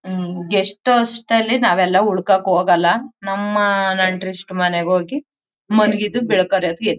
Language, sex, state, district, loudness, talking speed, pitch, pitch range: Kannada, female, Karnataka, Mysore, -17 LUFS, 120 wpm, 195 Hz, 185-215 Hz